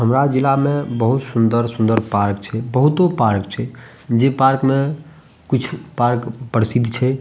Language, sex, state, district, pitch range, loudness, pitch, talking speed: Maithili, male, Bihar, Madhepura, 115-135 Hz, -18 LUFS, 125 Hz, 150 wpm